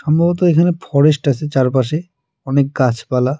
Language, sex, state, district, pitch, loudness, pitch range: Bengali, male, West Bengal, Alipurduar, 150 Hz, -16 LUFS, 130-165 Hz